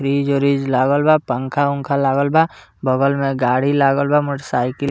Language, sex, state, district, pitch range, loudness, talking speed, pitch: Bhojpuri, male, Bihar, Muzaffarpur, 130-140 Hz, -17 LUFS, 195 wpm, 140 Hz